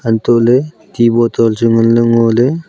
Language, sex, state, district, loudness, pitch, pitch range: Wancho, male, Arunachal Pradesh, Longding, -11 LUFS, 115 Hz, 115-120 Hz